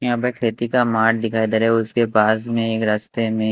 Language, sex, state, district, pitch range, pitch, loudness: Hindi, male, Maharashtra, Washim, 110-120 Hz, 115 Hz, -19 LUFS